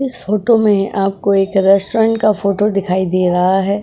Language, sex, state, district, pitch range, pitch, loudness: Hindi, female, Uttar Pradesh, Budaun, 195-210 Hz, 200 Hz, -14 LUFS